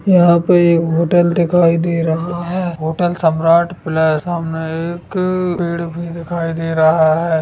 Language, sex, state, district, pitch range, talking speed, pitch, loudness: Hindi, male, Bihar, Sitamarhi, 165-175 Hz, 160 wpm, 170 Hz, -15 LUFS